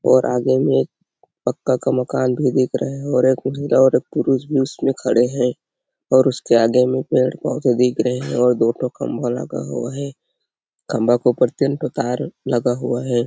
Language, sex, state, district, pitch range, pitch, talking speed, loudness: Hindi, male, Chhattisgarh, Sarguja, 125-130 Hz, 125 Hz, 210 wpm, -19 LUFS